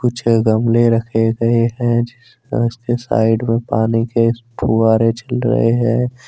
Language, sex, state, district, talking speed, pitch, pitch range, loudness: Hindi, male, Jharkhand, Deoghar, 125 wpm, 115 Hz, 115-120 Hz, -16 LUFS